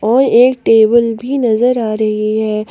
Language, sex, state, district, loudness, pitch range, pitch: Hindi, female, Jharkhand, Palamu, -12 LUFS, 215-245 Hz, 225 Hz